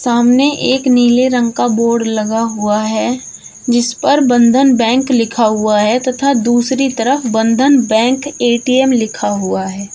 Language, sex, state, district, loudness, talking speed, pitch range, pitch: Hindi, female, Uttar Pradesh, Shamli, -13 LUFS, 150 wpm, 225-260 Hz, 240 Hz